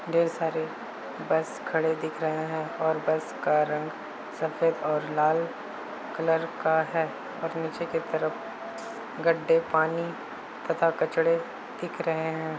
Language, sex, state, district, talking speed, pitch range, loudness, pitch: Hindi, male, Uttar Pradesh, Hamirpur, 135 wpm, 155-165 Hz, -28 LUFS, 160 Hz